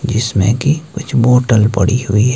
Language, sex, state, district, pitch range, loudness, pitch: Hindi, male, Himachal Pradesh, Shimla, 110-125 Hz, -13 LUFS, 120 Hz